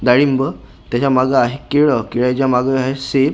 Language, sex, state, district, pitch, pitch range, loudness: Marathi, male, Maharashtra, Gondia, 135 Hz, 125-135 Hz, -16 LUFS